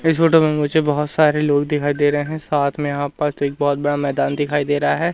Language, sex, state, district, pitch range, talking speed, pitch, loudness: Hindi, male, Madhya Pradesh, Umaria, 145-150 Hz, 270 wpm, 145 Hz, -18 LUFS